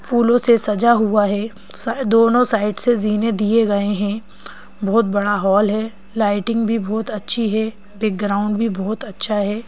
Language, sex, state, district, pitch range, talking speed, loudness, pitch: Hindi, female, Madhya Pradesh, Bhopal, 205-225 Hz, 165 wpm, -18 LUFS, 215 Hz